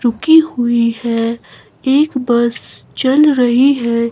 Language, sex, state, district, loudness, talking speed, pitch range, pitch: Hindi, female, Himachal Pradesh, Shimla, -13 LUFS, 115 wpm, 235-275 Hz, 240 Hz